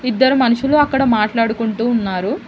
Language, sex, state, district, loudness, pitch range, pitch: Telugu, female, Telangana, Mahabubabad, -16 LUFS, 220-265 Hz, 235 Hz